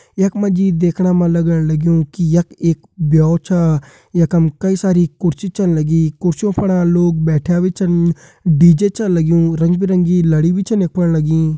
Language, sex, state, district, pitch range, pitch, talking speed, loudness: Kumaoni, male, Uttarakhand, Uttarkashi, 165-185 Hz, 170 Hz, 175 wpm, -15 LUFS